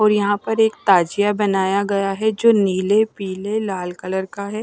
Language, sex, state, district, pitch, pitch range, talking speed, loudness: Hindi, female, Maharashtra, Washim, 200 Hz, 190-215 Hz, 195 wpm, -19 LUFS